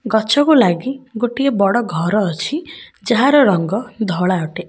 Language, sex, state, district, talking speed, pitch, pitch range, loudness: Odia, female, Odisha, Khordha, 130 wpm, 220 Hz, 185-270 Hz, -16 LUFS